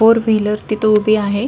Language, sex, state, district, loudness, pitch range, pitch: Marathi, female, Maharashtra, Solapur, -15 LUFS, 210-220 Hz, 215 Hz